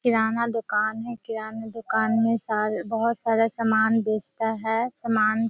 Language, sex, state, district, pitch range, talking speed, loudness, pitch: Hindi, female, Bihar, Kishanganj, 220-230 Hz, 140 wpm, -25 LUFS, 225 Hz